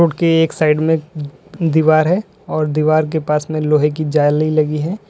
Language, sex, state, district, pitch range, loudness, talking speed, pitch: Hindi, male, Uttar Pradesh, Lalitpur, 150-160 Hz, -16 LUFS, 190 wpm, 155 Hz